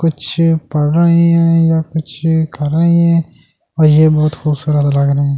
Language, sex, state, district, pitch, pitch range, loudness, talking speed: Hindi, male, Delhi, New Delhi, 155 Hz, 150-165 Hz, -13 LUFS, 155 wpm